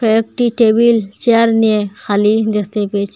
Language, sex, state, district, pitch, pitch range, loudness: Bengali, female, Assam, Hailakandi, 220 Hz, 205-230 Hz, -13 LUFS